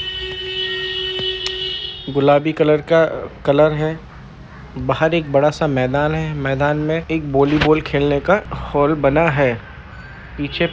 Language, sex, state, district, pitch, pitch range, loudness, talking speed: Hindi, male, Uttar Pradesh, Deoria, 155 Hz, 140-165 Hz, -18 LUFS, 125 wpm